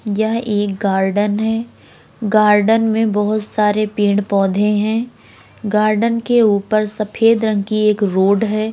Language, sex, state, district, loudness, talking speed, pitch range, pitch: Hindi, female, Uttar Pradesh, Hamirpur, -16 LUFS, 140 wpm, 205-220 Hz, 215 Hz